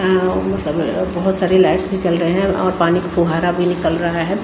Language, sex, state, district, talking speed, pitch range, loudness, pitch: Hindi, female, Himachal Pradesh, Shimla, 245 wpm, 170-185 Hz, -17 LUFS, 175 Hz